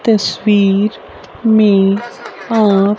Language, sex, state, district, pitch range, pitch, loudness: Hindi, female, Haryana, Rohtak, 195-220 Hz, 205 Hz, -13 LUFS